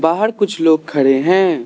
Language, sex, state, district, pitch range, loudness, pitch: Hindi, male, Arunachal Pradesh, Lower Dibang Valley, 155-190 Hz, -14 LUFS, 165 Hz